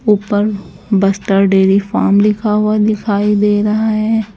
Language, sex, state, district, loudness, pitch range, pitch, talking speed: Hindi, female, Chhattisgarh, Raipur, -13 LUFS, 200-215 Hz, 210 Hz, 135 wpm